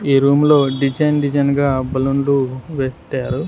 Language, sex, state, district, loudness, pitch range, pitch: Telugu, male, Andhra Pradesh, Sri Satya Sai, -17 LUFS, 135-145 Hz, 140 Hz